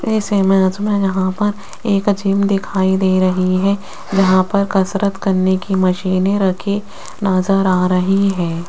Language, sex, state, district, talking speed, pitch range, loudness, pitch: Hindi, female, Rajasthan, Jaipur, 150 wpm, 185-200 Hz, -16 LUFS, 195 Hz